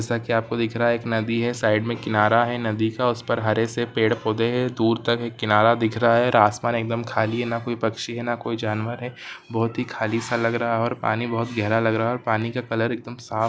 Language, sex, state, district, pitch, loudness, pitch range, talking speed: Hindi, male, Chhattisgarh, Rajnandgaon, 115 Hz, -23 LUFS, 110-120 Hz, 270 wpm